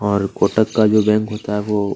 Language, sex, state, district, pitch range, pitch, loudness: Hindi, male, Chhattisgarh, Kabirdham, 105-110 Hz, 105 Hz, -17 LUFS